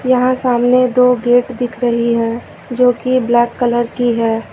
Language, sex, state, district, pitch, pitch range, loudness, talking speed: Hindi, female, Uttar Pradesh, Lucknow, 245 Hz, 235-250 Hz, -14 LUFS, 160 wpm